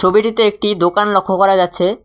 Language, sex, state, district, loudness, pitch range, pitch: Bengali, male, West Bengal, Cooch Behar, -14 LUFS, 185-210 Hz, 195 Hz